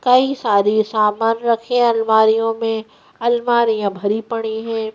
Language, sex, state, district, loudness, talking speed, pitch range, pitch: Hindi, female, Madhya Pradesh, Bhopal, -17 LUFS, 120 wpm, 220-235 Hz, 225 Hz